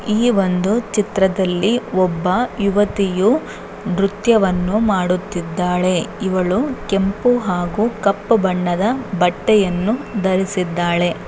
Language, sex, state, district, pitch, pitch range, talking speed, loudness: Kannada, female, Karnataka, Bellary, 195 Hz, 180-215 Hz, 75 wpm, -18 LUFS